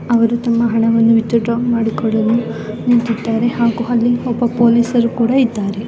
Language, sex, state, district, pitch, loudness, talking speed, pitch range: Kannada, female, Karnataka, Dakshina Kannada, 235 Hz, -15 LUFS, 120 wpm, 230-240 Hz